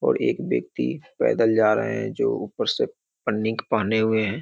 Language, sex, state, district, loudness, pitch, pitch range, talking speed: Hindi, male, Bihar, Muzaffarpur, -23 LUFS, 110 Hz, 110-115 Hz, 190 wpm